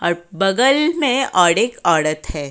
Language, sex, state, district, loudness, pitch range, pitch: Hindi, female, Uttar Pradesh, Jyotiba Phule Nagar, -16 LUFS, 170-260 Hz, 180 Hz